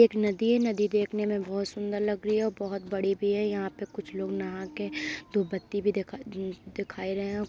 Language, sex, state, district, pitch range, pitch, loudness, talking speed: Hindi, female, Uttar Pradesh, Jalaun, 195-210 Hz, 200 Hz, -30 LUFS, 230 wpm